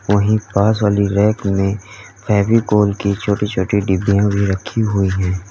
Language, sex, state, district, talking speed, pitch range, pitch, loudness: Hindi, male, Uttar Pradesh, Lalitpur, 150 wpm, 100-105 Hz, 100 Hz, -16 LUFS